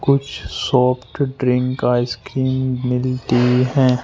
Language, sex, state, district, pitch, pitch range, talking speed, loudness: Hindi, male, Madhya Pradesh, Bhopal, 125 Hz, 125-130 Hz, 105 wpm, -18 LUFS